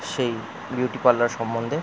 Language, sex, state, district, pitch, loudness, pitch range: Bengali, male, West Bengal, Jalpaiguri, 125 Hz, -24 LUFS, 115-125 Hz